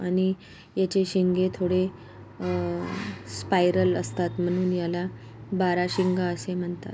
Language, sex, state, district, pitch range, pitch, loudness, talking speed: Marathi, female, Maharashtra, Solapur, 115-185 Hz, 180 Hz, -26 LUFS, 110 wpm